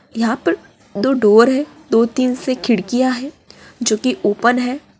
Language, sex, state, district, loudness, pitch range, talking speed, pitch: Hindi, female, Bihar, Araria, -17 LUFS, 230-265 Hz, 170 wpm, 250 Hz